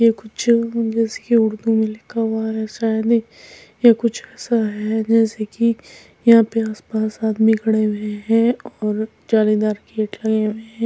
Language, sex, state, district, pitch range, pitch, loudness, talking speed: Hindi, female, Uttar Pradesh, Muzaffarnagar, 215-230 Hz, 220 Hz, -19 LUFS, 160 wpm